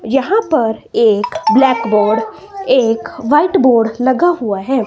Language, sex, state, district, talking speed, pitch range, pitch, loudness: Hindi, female, Himachal Pradesh, Shimla, 135 wpm, 225-320 Hz, 255 Hz, -13 LUFS